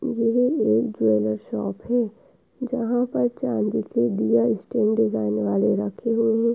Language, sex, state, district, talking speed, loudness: Hindi, female, Uttar Pradesh, Etah, 145 wpm, -23 LUFS